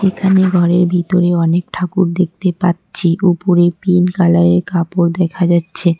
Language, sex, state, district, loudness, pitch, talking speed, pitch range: Bengali, female, West Bengal, Cooch Behar, -14 LUFS, 175 Hz, 130 wpm, 175-180 Hz